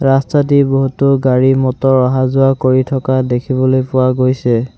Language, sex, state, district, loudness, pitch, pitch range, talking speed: Assamese, male, Assam, Sonitpur, -13 LUFS, 130 Hz, 130-135 Hz, 140 wpm